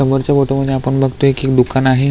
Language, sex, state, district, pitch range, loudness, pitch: Marathi, male, Maharashtra, Aurangabad, 130-135 Hz, -14 LUFS, 135 Hz